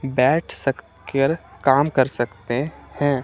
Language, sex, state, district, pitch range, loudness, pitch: Hindi, male, Himachal Pradesh, Shimla, 125-145 Hz, -21 LUFS, 135 Hz